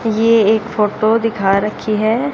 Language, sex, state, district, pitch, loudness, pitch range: Hindi, female, Haryana, Jhajjar, 220 Hz, -15 LUFS, 215-225 Hz